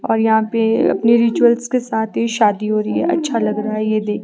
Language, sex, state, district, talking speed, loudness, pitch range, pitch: Hindi, female, Himachal Pradesh, Shimla, 255 wpm, -16 LUFS, 215-235 Hz, 220 Hz